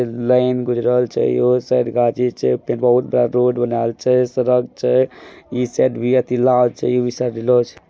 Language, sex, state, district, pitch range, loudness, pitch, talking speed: Maithili, male, Bihar, Madhepura, 120-125 Hz, -17 LUFS, 125 Hz, 105 wpm